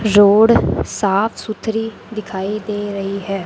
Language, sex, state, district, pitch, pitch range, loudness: Hindi, female, Rajasthan, Bikaner, 205 Hz, 195-215 Hz, -17 LUFS